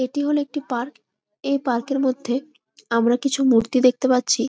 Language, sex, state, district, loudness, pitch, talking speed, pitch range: Bengali, female, West Bengal, Malda, -21 LUFS, 255 Hz, 185 wpm, 240-275 Hz